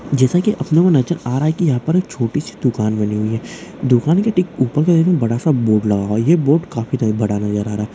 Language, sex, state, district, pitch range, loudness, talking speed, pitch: Hindi, male, Chhattisgarh, Korba, 110-165 Hz, -17 LUFS, 270 wpm, 130 Hz